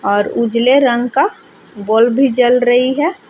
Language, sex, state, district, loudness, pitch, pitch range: Hindi, female, Jharkhand, Palamu, -13 LUFS, 245 Hz, 230-265 Hz